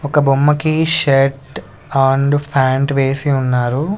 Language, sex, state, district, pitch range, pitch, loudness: Telugu, male, Andhra Pradesh, Sri Satya Sai, 135-145 Hz, 135 Hz, -15 LUFS